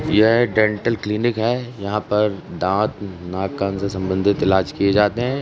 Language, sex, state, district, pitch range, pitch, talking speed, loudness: Hindi, male, Uttar Pradesh, Jalaun, 95-115 Hz, 105 Hz, 165 wpm, -20 LUFS